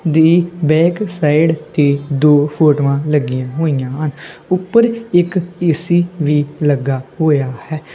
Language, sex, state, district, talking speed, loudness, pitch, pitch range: Punjabi, male, Punjab, Kapurthala, 120 wpm, -15 LUFS, 155 Hz, 145-175 Hz